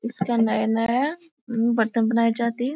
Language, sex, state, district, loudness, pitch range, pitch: Hindi, female, Bihar, Gaya, -22 LUFS, 225-245 Hz, 235 Hz